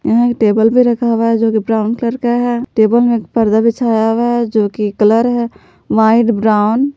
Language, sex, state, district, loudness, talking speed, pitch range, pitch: Hindi, female, Jharkhand, Palamu, -13 LUFS, 230 wpm, 220-240 Hz, 230 Hz